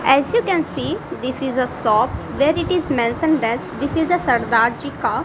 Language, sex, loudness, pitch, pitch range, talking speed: English, female, -19 LUFS, 275 Hz, 250-325 Hz, 215 wpm